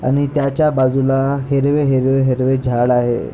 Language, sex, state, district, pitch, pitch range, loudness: Marathi, male, Maharashtra, Pune, 135 Hz, 130-140 Hz, -16 LUFS